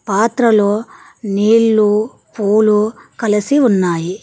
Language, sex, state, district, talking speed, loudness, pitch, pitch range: Telugu, female, Telangana, Mahabubabad, 70 wpm, -14 LUFS, 215 Hz, 205-230 Hz